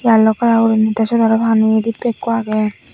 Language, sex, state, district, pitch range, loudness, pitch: Chakma, female, Tripura, Unakoti, 220-230 Hz, -15 LUFS, 225 Hz